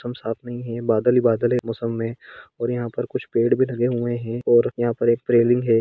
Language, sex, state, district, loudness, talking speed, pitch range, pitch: Hindi, male, Jharkhand, Sahebganj, -21 LUFS, 225 wpm, 115-120 Hz, 120 Hz